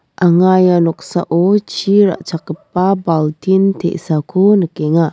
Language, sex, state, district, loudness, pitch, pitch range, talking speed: Garo, female, Meghalaya, West Garo Hills, -14 LUFS, 175 Hz, 165-190 Hz, 95 wpm